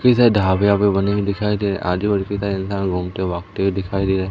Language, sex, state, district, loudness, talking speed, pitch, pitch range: Hindi, male, Madhya Pradesh, Umaria, -19 LUFS, 235 wpm, 100 Hz, 95-100 Hz